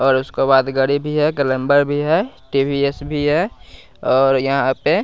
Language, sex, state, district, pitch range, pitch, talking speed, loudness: Hindi, male, Bihar, West Champaran, 135-145 Hz, 140 Hz, 190 wpm, -17 LUFS